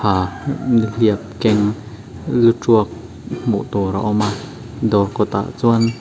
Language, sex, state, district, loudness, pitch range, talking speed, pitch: Mizo, male, Mizoram, Aizawl, -18 LUFS, 105-115 Hz, 140 wpm, 110 Hz